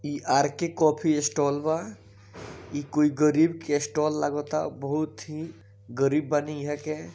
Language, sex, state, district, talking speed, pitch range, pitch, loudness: Bhojpuri, male, Bihar, East Champaran, 150 wpm, 140-155 Hz, 150 Hz, -26 LUFS